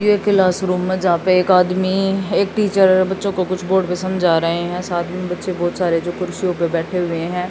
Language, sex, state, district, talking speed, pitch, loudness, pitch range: Hindi, female, Haryana, Jhajjar, 225 wpm, 185 Hz, -18 LUFS, 175-190 Hz